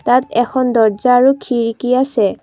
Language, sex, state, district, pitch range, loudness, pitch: Assamese, female, Assam, Kamrup Metropolitan, 230-255 Hz, -14 LUFS, 245 Hz